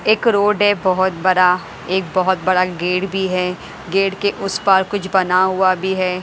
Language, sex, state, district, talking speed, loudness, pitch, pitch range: Hindi, female, Haryana, Jhajjar, 190 wpm, -17 LUFS, 190 Hz, 185-195 Hz